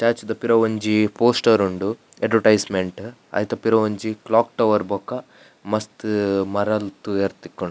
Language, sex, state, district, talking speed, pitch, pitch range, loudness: Tulu, male, Karnataka, Dakshina Kannada, 125 wpm, 110 Hz, 100-115 Hz, -21 LUFS